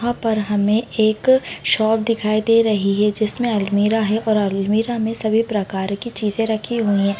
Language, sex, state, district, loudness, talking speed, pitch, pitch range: Hindi, female, Bihar, Bhagalpur, -18 LUFS, 185 wpm, 215 Hz, 210-225 Hz